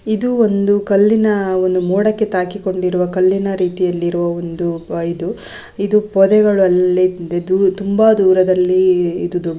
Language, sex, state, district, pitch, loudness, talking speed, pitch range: Kannada, female, Karnataka, Gulbarga, 185 Hz, -15 LUFS, 105 wpm, 180-200 Hz